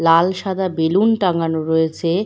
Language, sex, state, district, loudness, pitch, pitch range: Bengali, female, West Bengal, Dakshin Dinajpur, -18 LUFS, 170 Hz, 160-190 Hz